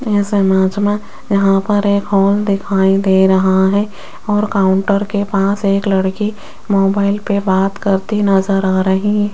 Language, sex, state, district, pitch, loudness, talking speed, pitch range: Hindi, female, Rajasthan, Jaipur, 200 Hz, -14 LUFS, 160 wpm, 195-205 Hz